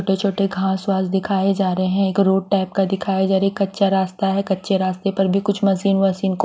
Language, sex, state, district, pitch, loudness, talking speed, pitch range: Hindi, female, Haryana, Charkhi Dadri, 195 Hz, -19 LUFS, 250 wpm, 190-195 Hz